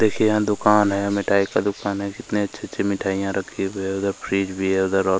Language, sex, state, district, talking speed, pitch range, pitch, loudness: Hindi, male, Chhattisgarh, Kabirdham, 245 wpm, 95-105 Hz, 100 Hz, -22 LUFS